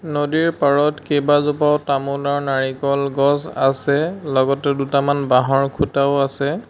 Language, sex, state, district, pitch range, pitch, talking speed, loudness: Assamese, male, Assam, Sonitpur, 140-145 Hz, 140 Hz, 115 wpm, -18 LUFS